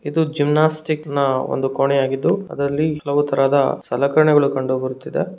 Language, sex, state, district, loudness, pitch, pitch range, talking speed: Kannada, male, Karnataka, Shimoga, -19 LUFS, 145 Hz, 135-155 Hz, 125 wpm